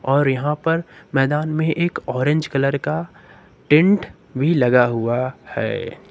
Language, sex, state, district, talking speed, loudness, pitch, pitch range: Hindi, male, Uttar Pradesh, Lucknow, 140 wpm, -19 LUFS, 145 Hz, 135-160 Hz